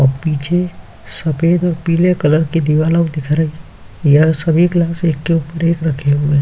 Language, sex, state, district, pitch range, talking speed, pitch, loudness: Hindi, male, Uttar Pradesh, Jyotiba Phule Nagar, 150-170 Hz, 185 wpm, 160 Hz, -15 LUFS